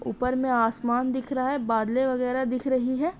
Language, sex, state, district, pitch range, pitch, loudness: Hindi, female, Bihar, Saharsa, 245-260 Hz, 255 Hz, -26 LUFS